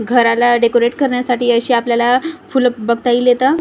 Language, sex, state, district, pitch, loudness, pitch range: Marathi, female, Maharashtra, Gondia, 245 Hz, -14 LUFS, 235-255 Hz